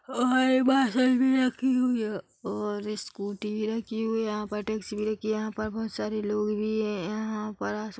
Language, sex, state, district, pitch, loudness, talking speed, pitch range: Hindi, female, Chhattisgarh, Bilaspur, 215 Hz, -28 LUFS, 200 wpm, 210-250 Hz